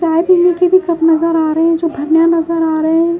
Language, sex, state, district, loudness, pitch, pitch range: Hindi, female, Haryana, Jhajjar, -12 LUFS, 330 Hz, 325-340 Hz